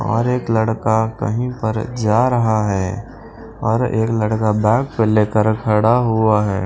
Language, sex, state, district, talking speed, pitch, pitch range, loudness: Hindi, male, Punjab, Pathankot, 155 wpm, 110 Hz, 110-115 Hz, -17 LUFS